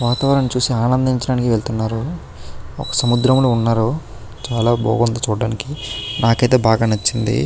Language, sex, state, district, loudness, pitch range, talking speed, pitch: Telugu, male, Andhra Pradesh, Chittoor, -17 LUFS, 110-130 Hz, 120 wpm, 120 Hz